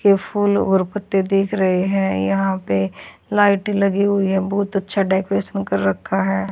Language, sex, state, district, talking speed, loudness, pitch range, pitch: Hindi, female, Haryana, Charkhi Dadri, 175 wpm, -19 LUFS, 190-200 Hz, 195 Hz